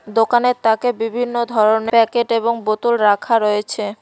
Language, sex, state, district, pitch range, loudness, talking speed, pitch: Bengali, female, West Bengal, Cooch Behar, 215-235 Hz, -17 LUFS, 135 wpm, 225 Hz